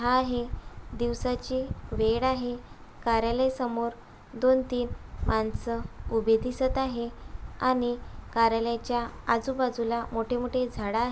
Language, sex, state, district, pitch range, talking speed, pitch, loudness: Marathi, female, Maharashtra, Aurangabad, 230-255 Hz, 95 wpm, 240 Hz, -29 LUFS